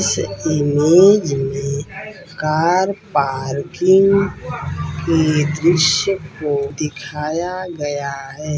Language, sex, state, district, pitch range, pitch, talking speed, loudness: Hindi, male, Uttar Pradesh, Ghazipur, 140-180 Hz, 155 Hz, 75 wpm, -17 LUFS